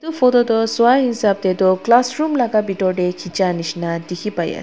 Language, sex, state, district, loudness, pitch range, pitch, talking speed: Nagamese, female, Nagaland, Dimapur, -17 LUFS, 180-240 Hz, 205 Hz, 170 wpm